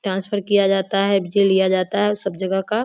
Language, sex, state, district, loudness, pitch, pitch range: Hindi, female, Bihar, Samastipur, -19 LUFS, 195 Hz, 190-205 Hz